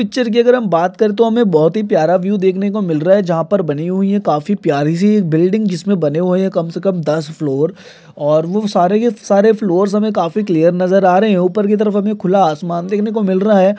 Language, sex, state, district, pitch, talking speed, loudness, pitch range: Hindi, male, Bihar, Sitamarhi, 195 Hz, 260 wpm, -14 LUFS, 170-210 Hz